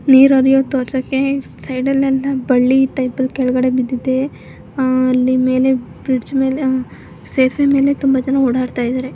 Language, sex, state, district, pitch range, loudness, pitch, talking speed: Kannada, female, Karnataka, Mysore, 255-270 Hz, -16 LUFS, 260 Hz, 130 wpm